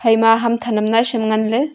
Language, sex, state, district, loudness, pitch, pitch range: Wancho, female, Arunachal Pradesh, Longding, -15 LUFS, 225 Hz, 220-235 Hz